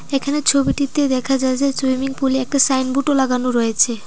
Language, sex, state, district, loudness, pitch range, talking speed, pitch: Bengali, female, Tripura, Dhalai, -17 LUFS, 260-280 Hz, 145 wpm, 265 Hz